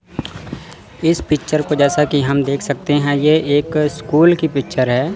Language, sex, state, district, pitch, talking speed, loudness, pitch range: Hindi, male, Chandigarh, Chandigarh, 150 Hz, 175 wpm, -16 LUFS, 140-155 Hz